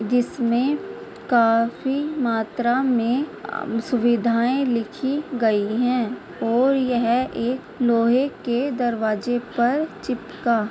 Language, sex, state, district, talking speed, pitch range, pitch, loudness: Hindi, female, Bihar, Purnia, 95 wpm, 235-265 Hz, 245 Hz, -22 LUFS